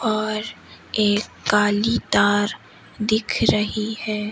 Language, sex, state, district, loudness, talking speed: Hindi, female, Madhya Pradesh, Umaria, -21 LUFS, 95 wpm